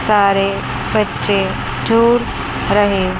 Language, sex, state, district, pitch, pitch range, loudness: Hindi, female, Chandigarh, Chandigarh, 205 Hz, 195-230 Hz, -15 LUFS